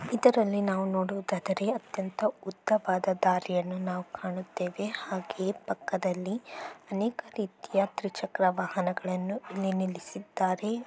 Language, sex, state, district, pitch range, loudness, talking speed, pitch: Kannada, female, Karnataka, Bellary, 185-210 Hz, -31 LUFS, 90 wpm, 190 Hz